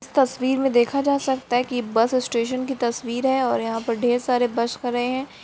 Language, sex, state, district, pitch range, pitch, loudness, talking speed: Hindi, female, Bihar, Lakhisarai, 240-265 Hz, 245 Hz, -22 LUFS, 230 wpm